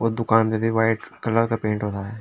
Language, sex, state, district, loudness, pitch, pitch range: Hindi, male, Uttar Pradesh, Shamli, -22 LUFS, 115 Hz, 105-115 Hz